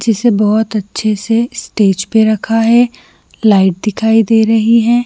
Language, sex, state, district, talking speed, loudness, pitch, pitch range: Hindi, female, Jharkhand, Jamtara, 165 wpm, -12 LUFS, 225 Hz, 215-230 Hz